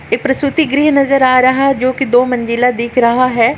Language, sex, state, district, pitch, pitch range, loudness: Hindi, female, Chhattisgarh, Kabirdham, 255 Hz, 245-275 Hz, -12 LUFS